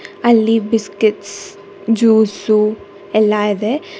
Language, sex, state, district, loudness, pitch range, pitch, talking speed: Kannada, female, Karnataka, Bangalore, -15 LUFS, 205-225 Hz, 215 Hz, 75 wpm